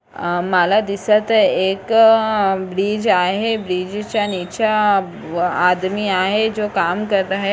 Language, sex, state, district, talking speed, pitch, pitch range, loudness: Marathi, female, Maharashtra, Sindhudurg, 125 wpm, 200 Hz, 185-215 Hz, -17 LUFS